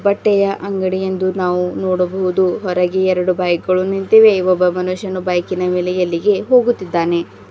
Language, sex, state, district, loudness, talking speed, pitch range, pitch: Kannada, female, Karnataka, Bidar, -16 LUFS, 120 wpm, 180-195 Hz, 185 Hz